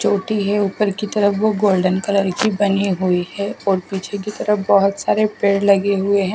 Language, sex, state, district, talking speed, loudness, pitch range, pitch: Hindi, female, Haryana, Charkhi Dadri, 210 wpm, -18 LUFS, 195-210 Hz, 200 Hz